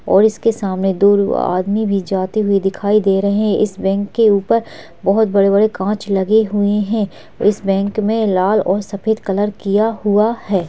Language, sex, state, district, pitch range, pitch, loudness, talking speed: Hindi, female, Chhattisgarh, Kabirdham, 195-215 Hz, 205 Hz, -16 LUFS, 185 wpm